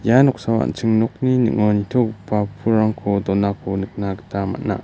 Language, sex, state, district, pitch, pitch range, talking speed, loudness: Garo, male, Meghalaya, West Garo Hills, 110 Hz, 100-115 Hz, 135 wpm, -19 LUFS